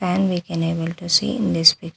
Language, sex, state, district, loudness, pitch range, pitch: English, female, Telangana, Hyderabad, -19 LUFS, 165-185 Hz, 175 Hz